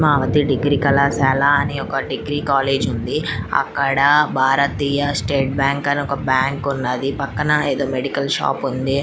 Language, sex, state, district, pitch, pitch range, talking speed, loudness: Telugu, female, Andhra Pradesh, Srikakulam, 140 Hz, 135-145 Hz, 140 wpm, -18 LUFS